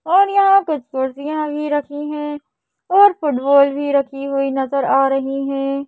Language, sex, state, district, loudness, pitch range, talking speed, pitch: Hindi, female, Madhya Pradesh, Bhopal, -17 LUFS, 275-300 Hz, 165 wpm, 280 Hz